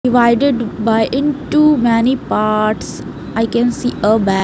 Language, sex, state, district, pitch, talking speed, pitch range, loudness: English, female, Haryana, Jhajjar, 235 Hz, 160 wpm, 220-260 Hz, -15 LUFS